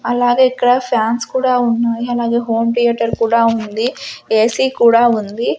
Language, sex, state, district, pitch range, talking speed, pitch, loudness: Telugu, female, Andhra Pradesh, Sri Satya Sai, 230-245 Hz, 140 wpm, 235 Hz, -15 LUFS